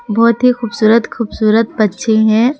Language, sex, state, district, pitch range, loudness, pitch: Hindi, female, Jharkhand, Palamu, 220-235 Hz, -13 LUFS, 225 Hz